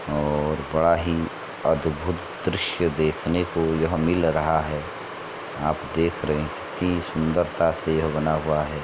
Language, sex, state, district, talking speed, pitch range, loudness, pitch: Hindi, male, Uttar Pradesh, Etah, 140 wpm, 75-85 Hz, -24 LUFS, 80 Hz